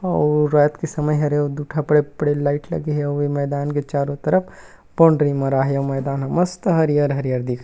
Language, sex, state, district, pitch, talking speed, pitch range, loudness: Chhattisgarhi, male, Chhattisgarh, Rajnandgaon, 145 Hz, 205 wpm, 140-150 Hz, -19 LUFS